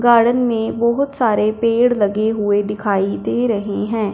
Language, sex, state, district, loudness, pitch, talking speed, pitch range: Hindi, male, Punjab, Fazilka, -17 LUFS, 220 Hz, 160 wpm, 210-235 Hz